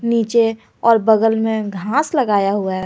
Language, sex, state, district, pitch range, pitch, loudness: Hindi, female, Jharkhand, Garhwa, 205-230 Hz, 225 Hz, -17 LUFS